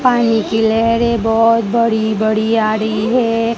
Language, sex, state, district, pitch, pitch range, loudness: Hindi, female, Gujarat, Gandhinagar, 225 Hz, 220-230 Hz, -14 LUFS